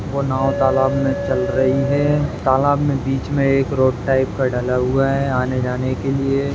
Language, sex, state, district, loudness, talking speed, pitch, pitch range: Hindi, male, Maharashtra, Dhule, -18 LUFS, 210 wpm, 135 Hz, 130-140 Hz